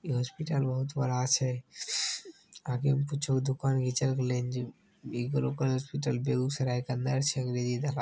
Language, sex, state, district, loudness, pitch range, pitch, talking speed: Maithili, male, Bihar, Begusarai, -31 LUFS, 125-140 Hz, 130 Hz, 140 wpm